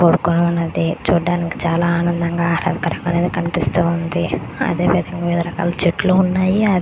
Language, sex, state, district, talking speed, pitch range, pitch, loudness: Telugu, female, Andhra Pradesh, Krishna, 115 wpm, 170-175 Hz, 170 Hz, -18 LUFS